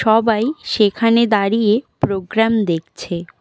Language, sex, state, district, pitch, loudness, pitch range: Bengali, female, West Bengal, Cooch Behar, 220 Hz, -17 LUFS, 195-225 Hz